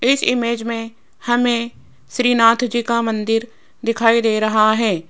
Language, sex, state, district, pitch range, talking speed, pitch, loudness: Hindi, female, Rajasthan, Jaipur, 225-240 Hz, 140 wpm, 230 Hz, -17 LUFS